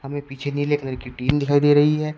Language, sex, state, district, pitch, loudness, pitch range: Hindi, male, Uttar Pradesh, Shamli, 145 Hz, -21 LUFS, 135-145 Hz